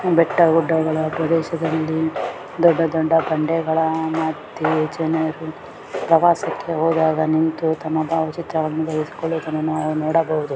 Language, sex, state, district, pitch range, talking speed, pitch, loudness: Kannada, female, Karnataka, Bellary, 155-165 Hz, 85 wpm, 160 Hz, -20 LUFS